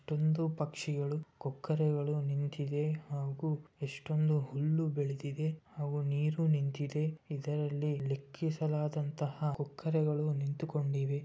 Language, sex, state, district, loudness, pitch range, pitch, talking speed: Kannada, male, Karnataka, Bellary, -35 LUFS, 145-155 Hz, 150 Hz, 85 wpm